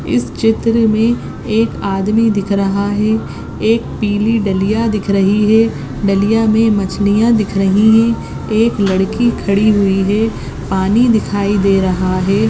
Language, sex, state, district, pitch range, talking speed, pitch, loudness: Hindi, female, Maharashtra, Sindhudurg, 195-225 Hz, 145 wpm, 210 Hz, -14 LUFS